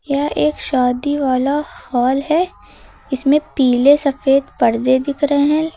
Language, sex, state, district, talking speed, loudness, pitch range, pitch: Hindi, female, Uttar Pradesh, Lucknow, 135 wpm, -16 LUFS, 255-290 Hz, 280 Hz